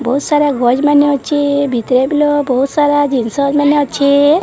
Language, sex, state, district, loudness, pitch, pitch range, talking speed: Odia, female, Odisha, Sambalpur, -13 LUFS, 285 Hz, 265-290 Hz, 135 wpm